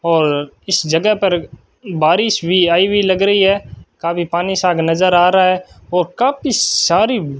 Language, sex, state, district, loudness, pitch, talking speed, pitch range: Hindi, male, Rajasthan, Bikaner, -15 LUFS, 180 Hz, 180 wpm, 165-195 Hz